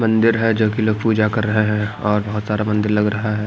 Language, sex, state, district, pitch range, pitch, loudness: Hindi, male, Haryana, Jhajjar, 105-110 Hz, 105 Hz, -18 LUFS